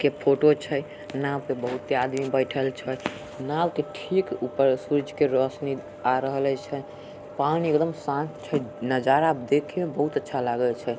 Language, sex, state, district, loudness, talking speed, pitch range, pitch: Angika, male, Bihar, Samastipur, -26 LUFS, 170 wpm, 130-150 Hz, 140 Hz